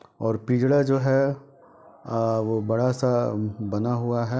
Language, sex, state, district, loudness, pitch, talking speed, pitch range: Hindi, male, Bihar, Sitamarhi, -24 LUFS, 120 Hz, 150 wpm, 110-135 Hz